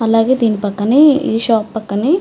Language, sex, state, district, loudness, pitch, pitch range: Telugu, female, Andhra Pradesh, Chittoor, -14 LUFS, 225 Hz, 215-260 Hz